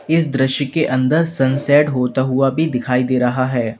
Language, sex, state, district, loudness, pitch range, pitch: Hindi, male, Uttar Pradesh, Lalitpur, -17 LUFS, 125-150 Hz, 130 Hz